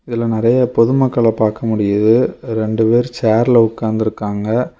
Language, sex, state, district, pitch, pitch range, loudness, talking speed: Tamil, male, Tamil Nadu, Kanyakumari, 115 Hz, 110-120 Hz, -15 LUFS, 125 wpm